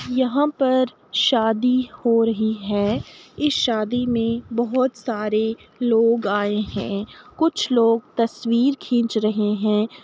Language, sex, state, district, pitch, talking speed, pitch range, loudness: Hindi, female, Uttar Pradesh, Jalaun, 230 Hz, 120 wpm, 215-255 Hz, -21 LUFS